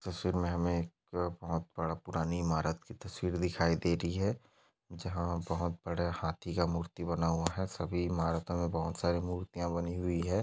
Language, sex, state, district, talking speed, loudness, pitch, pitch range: Hindi, male, Maharashtra, Aurangabad, 190 wpm, -35 LUFS, 85 Hz, 85-90 Hz